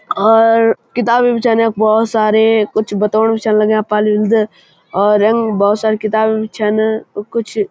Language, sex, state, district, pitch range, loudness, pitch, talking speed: Garhwali, male, Uttarakhand, Uttarkashi, 210-225 Hz, -13 LUFS, 220 Hz, 165 wpm